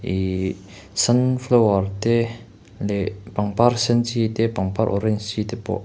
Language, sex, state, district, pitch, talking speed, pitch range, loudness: Mizo, male, Mizoram, Aizawl, 110 Hz, 135 wpm, 100-115 Hz, -21 LUFS